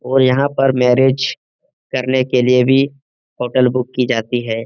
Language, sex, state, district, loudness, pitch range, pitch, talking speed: Hindi, male, Bihar, Lakhisarai, -15 LUFS, 125-135 Hz, 130 Hz, 180 wpm